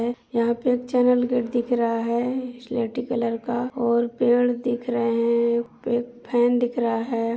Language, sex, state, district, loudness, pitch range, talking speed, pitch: Hindi, female, Uttar Pradesh, Jyotiba Phule Nagar, -23 LUFS, 235-245 Hz, 170 wpm, 240 Hz